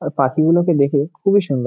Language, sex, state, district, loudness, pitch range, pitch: Bengali, male, West Bengal, Malda, -16 LUFS, 140-170 Hz, 145 Hz